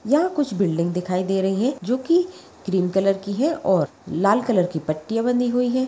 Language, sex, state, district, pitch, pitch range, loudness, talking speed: Hindi, female, Bihar, Sitamarhi, 200 Hz, 185-250 Hz, -22 LUFS, 215 wpm